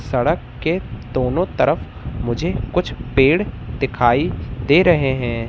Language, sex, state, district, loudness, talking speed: Hindi, male, Madhya Pradesh, Katni, -19 LUFS, 120 wpm